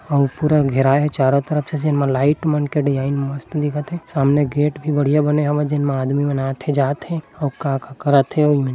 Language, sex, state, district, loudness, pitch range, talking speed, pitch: Chhattisgarhi, male, Chhattisgarh, Bilaspur, -19 LUFS, 140-150 Hz, 235 wpm, 145 Hz